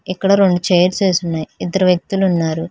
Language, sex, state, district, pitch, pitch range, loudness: Telugu, female, Telangana, Hyderabad, 180 Hz, 165-190 Hz, -16 LUFS